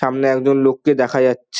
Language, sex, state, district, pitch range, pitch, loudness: Bengali, male, West Bengal, Dakshin Dinajpur, 130-135 Hz, 135 Hz, -16 LUFS